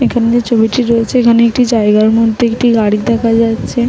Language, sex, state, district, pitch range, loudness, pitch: Bengali, female, West Bengal, Malda, 225-240 Hz, -11 LUFS, 230 Hz